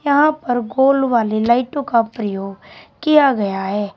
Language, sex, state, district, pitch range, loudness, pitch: Hindi, female, Uttar Pradesh, Shamli, 205-280 Hz, -17 LUFS, 240 Hz